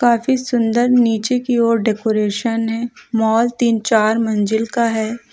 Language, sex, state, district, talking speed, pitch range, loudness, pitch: Hindi, female, Uttar Pradesh, Lucknow, 145 wpm, 220-240 Hz, -17 LUFS, 230 Hz